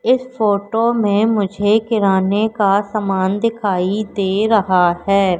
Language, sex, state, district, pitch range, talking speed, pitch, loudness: Hindi, female, Madhya Pradesh, Katni, 195-220 Hz, 120 wpm, 205 Hz, -16 LUFS